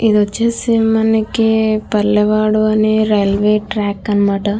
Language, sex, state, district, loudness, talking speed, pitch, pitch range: Telugu, female, Andhra Pradesh, Krishna, -14 LUFS, 105 wpm, 215 Hz, 210-220 Hz